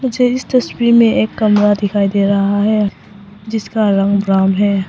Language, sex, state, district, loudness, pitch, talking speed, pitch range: Hindi, female, Arunachal Pradesh, Papum Pare, -14 LUFS, 205 Hz, 170 wpm, 200-220 Hz